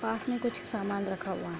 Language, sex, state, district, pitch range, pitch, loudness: Hindi, female, Bihar, Bhagalpur, 195-230 Hz, 210 Hz, -33 LUFS